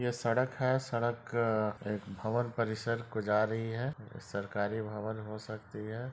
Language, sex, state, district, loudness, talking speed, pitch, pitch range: Hindi, male, Jharkhand, Sahebganj, -35 LUFS, 175 wpm, 110 Hz, 105-120 Hz